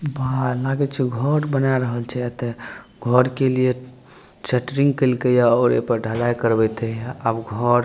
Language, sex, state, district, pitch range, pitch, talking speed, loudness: Maithili, male, Bihar, Madhepura, 120-130 Hz, 125 Hz, 185 wpm, -21 LUFS